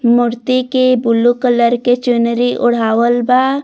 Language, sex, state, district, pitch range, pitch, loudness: Bhojpuri, female, Bihar, Muzaffarpur, 235-250 Hz, 240 Hz, -13 LUFS